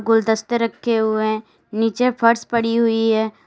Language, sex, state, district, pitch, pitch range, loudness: Hindi, female, Uttar Pradesh, Lalitpur, 225 Hz, 220-235 Hz, -19 LUFS